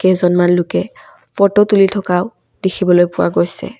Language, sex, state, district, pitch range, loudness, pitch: Assamese, female, Assam, Kamrup Metropolitan, 175-200 Hz, -14 LUFS, 185 Hz